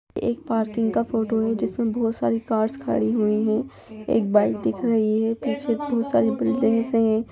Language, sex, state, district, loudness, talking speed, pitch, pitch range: Hindi, female, Bihar, Gopalganj, -23 LUFS, 190 wpm, 225 Hz, 220-230 Hz